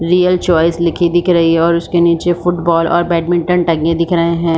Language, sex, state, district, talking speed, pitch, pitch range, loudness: Hindi, female, Chhattisgarh, Bilaspur, 210 wpm, 170 Hz, 170-175 Hz, -13 LUFS